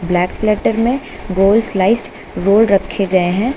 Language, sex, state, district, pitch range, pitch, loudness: Hindi, female, Uttar Pradesh, Lucknow, 190-225 Hz, 200 Hz, -14 LUFS